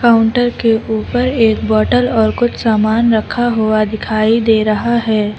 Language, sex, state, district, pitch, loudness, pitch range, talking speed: Hindi, female, Uttar Pradesh, Lucknow, 225 Hz, -13 LUFS, 215-235 Hz, 155 wpm